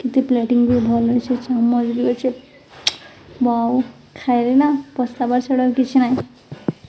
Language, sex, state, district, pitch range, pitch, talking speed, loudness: Odia, female, Odisha, Sambalpur, 240-260 Hz, 250 Hz, 140 wpm, -18 LUFS